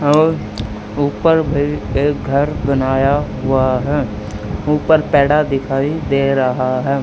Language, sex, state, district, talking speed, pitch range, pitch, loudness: Hindi, male, Haryana, Charkhi Dadri, 120 wpm, 130-145 Hz, 140 Hz, -16 LUFS